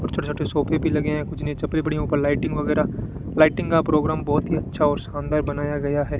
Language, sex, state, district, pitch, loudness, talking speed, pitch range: Hindi, male, Rajasthan, Bikaner, 150 Hz, -23 LUFS, 250 wpm, 145-155 Hz